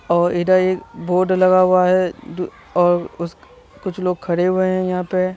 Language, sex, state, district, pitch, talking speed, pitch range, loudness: Hindi, male, Bihar, Vaishali, 185 Hz, 210 wpm, 175-185 Hz, -18 LUFS